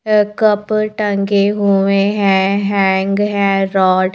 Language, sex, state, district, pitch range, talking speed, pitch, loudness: Hindi, female, Madhya Pradesh, Bhopal, 195-205 Hz, 115 wpm, 200 Hz, -14 LUFS